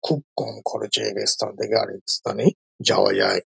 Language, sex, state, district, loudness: Bengali, male, West Bengal, Dakshin Dinajpur, -22 LUFS